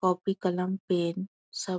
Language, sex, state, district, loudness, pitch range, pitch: Hindi, female, Bihar, Muzaffarpur, -30 LUFS, 180-190 Hz, 185 Hz